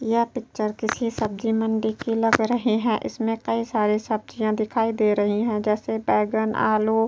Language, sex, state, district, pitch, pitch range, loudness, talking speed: Hindi, female, Uttar Pradesh, Jyotiba Phule Nagar, 220 Hz, 215-225 Hz, -23 LUFS, 180 wpm